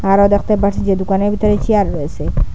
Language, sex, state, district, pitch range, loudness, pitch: Bengali, female, Assam, Hailakandi, 195-210 Hz, -15 LUFS, 200 Hz